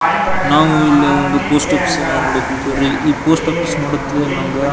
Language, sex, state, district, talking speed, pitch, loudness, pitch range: Kannada, male, Karnataka, Belgaum, 175 wpm, 145 Hz, -15 LUFS, 140-160 Hz